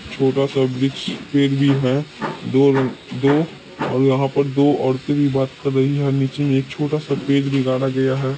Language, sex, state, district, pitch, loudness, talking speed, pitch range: Maithili, male, Bihar, Supaul, 135 Hz, -19 LUFS, 130 wpm, 135-140 Hz